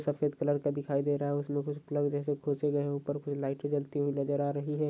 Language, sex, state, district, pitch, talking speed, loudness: Hindi, male, Chhattisgarh, Raigarh, 145 Hz, 255 wpm, -32 LUFS